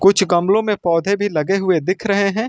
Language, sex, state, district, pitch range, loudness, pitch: Hindi, male, Uttar Pradesh, Lucknow, 180-205 Hz, -17 LUFS, 195 Hz